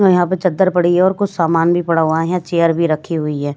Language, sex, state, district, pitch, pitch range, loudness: Hindi, female, Maharashtra, Washim, 170 Hz, 165-180 Hz, -15 LUFS